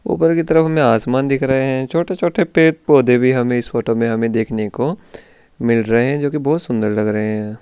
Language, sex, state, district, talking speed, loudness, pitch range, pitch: Hindi, male, Rajasthan, Churu, 220 wpm, -16 LUFS, 115-155 Hz, 130 Hz